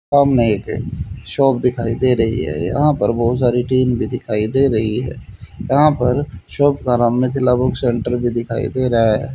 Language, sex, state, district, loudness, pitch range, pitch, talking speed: Hindi, male, Haryana, Jhajjar, -17 LUFS, 115-130 Hz, 125 Hz, 190 wpm